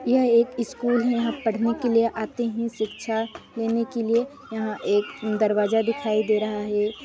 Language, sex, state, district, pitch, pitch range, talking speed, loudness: Hindi, female, Chhattisgarh, Sarguja, 230 Hz, 215-235 Hz, 180 wpm, -24 LUFS